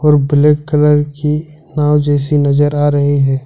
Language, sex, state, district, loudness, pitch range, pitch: Hindi, male, Jharkhand, Ranchi, -13 LUFS, 145-150 Hz, 145 Hz